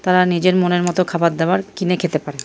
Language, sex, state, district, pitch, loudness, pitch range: Bengali, male, Jharkhand, Jamtara, 180 Hz, -17 LUFS, 170-185 Hz